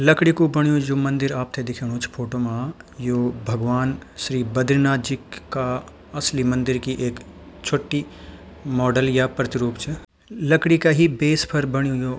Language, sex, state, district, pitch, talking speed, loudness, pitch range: Garhwali, male, Uttarakhand, Tehri Garhwal, 130 Hz, 160 wpm, -22 LUFS, 125-145 Hz